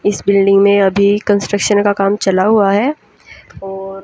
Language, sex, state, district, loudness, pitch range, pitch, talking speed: Hindi, female, Haryana, Jhajjar, -12 LUFS, 195-205 Hz, 200 Hz, 165 wpm